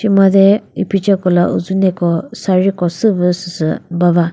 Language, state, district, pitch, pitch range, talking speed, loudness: Chakhesang, Nagaland, Dimapur, 185 Hz, 175-195 Hz, 150 wpm, -14 LUFS